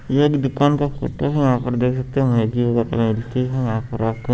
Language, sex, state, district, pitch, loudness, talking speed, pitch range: Hindi, male, Chandigarh, Chandigarh, 125 Hz, -20 LUFS, 140 wpm, 115-135 Hz